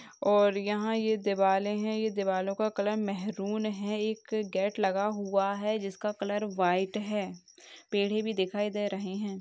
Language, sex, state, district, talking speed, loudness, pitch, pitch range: Hindi, female, Jharkhand, Sahebganj, 170 wpm, -30 LUFS, 205 Hz, 195-215 Hz